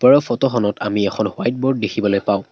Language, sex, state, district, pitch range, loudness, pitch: Assamese, male, Assam, Kamrup Metropolitan, 100-125 Hz, -18 LUFS, 105 Hz